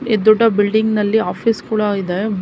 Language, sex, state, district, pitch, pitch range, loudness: Kannada, female, Karnataka, Mysore, 215 Hz, 205-220 Hz, -16 LUFS